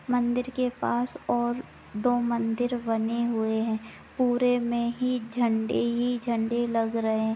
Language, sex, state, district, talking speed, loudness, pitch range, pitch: Hindi, female, Bihar, Jahanabad, 145 wpm, -27 LUFS, 225-245 Hz, 235 Hz